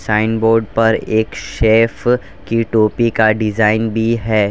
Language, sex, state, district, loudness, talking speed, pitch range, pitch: Hindi, male, Gujarat, Valsad, -15 LUFS, 145 wpm, 110-115 Hz, 110 Hz